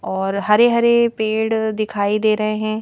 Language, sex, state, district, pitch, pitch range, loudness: Hindi, female, Madhya Pradesh, Bhopal, 215 Hz, 210-220 Hz, -17 LUFS